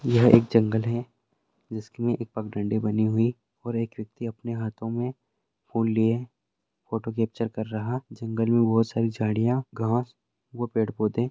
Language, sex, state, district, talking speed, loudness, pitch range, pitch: Hindi, male, Andhra Pradesh, Krishna, 160 wpm, -26 LUFS, 110-120 Hz, 115 Hz